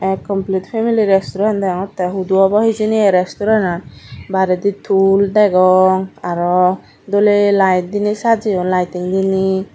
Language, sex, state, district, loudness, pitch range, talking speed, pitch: Chakma, female, Tripura, Dhalai, -15 LUFS, 185-205 Hz, 130 wpm, 190 Hz